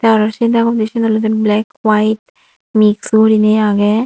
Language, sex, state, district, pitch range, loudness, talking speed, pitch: Chakma, female, Tripura, Unakoti, 215-225 Hz, -13 LUFS, 160 wpm, 220 Hz